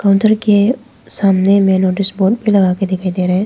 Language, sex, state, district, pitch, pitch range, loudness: Hindi, female, Arunachal Pradesh, Papum Pare, 195 Hz, 190-210 Hz, -13 LUFS